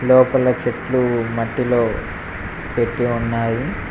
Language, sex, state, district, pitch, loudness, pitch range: Telugu, male, Telangana, Mahabubabad, 120 Hz, -19 LUFS, 115-125 Hz